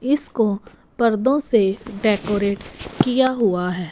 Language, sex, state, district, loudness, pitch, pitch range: Hindi, female, Punjab, Fazilka, -20 LUFS, 215 Hz, 200-250 Hz